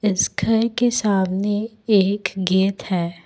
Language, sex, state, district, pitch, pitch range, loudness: Hindi, female, Assam, Kamrup Metropolitan, 200 Hz, 190-215 Hz, -20 LUFS